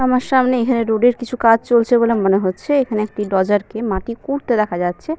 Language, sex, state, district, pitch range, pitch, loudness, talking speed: Bengali, female, West Bengal, Paschim Medinipur, 210-250 Hz, 230 Hz, -17 LUFS, 220 wpm